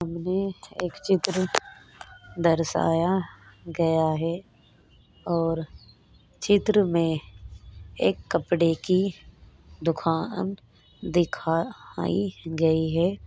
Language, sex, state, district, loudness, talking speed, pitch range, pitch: Hindi, female, Rajasthan, Nagaur, -26 LUFS, 70 wpm, 160-185 Hz, 165 Hz